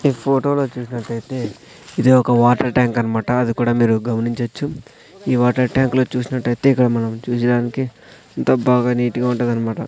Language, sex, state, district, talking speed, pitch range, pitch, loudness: Telugu, male, Andhra Pradesh, Sri Satya Sai, 165 wpm, 120-125 Hz, 120 Hz, -18 LUFS